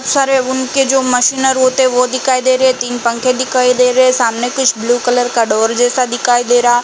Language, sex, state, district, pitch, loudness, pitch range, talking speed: Hindi, female, Uttar Pradesh, Jalaun, 250 Hz, -12 LUFS, 245-260 Hz, 230 wpm